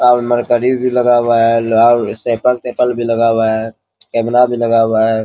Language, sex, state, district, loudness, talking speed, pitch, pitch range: Hindi, male, Bihar, Bhagalpur, -13 LUFS, 240 wpm, 115 Hz, 115-125 Hz